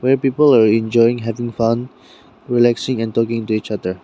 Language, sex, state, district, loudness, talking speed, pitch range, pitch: English, male, Nagaland, Dimapur, -17 LUFS, 180 wpm, 115-125 Hz, 115 Hz